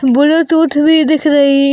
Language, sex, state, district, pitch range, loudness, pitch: Hindi, female, Jharkhand, Garhwa, 280-320 Hz, -10 LUFS, 300 Hz